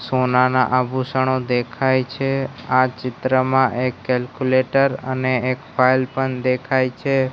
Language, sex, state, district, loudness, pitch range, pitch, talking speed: Gujarati, male, Gujarat, Gandhinagar, -19 LUFS, 125-130 Hz, 130 Hz, 115 wpm